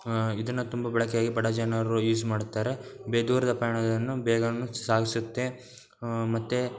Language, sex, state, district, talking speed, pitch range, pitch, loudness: Kannada, male, Karnataka, Dakshina Kannada, 115 wpm, 115-125 Hz, 115 Hz, -28 LUFS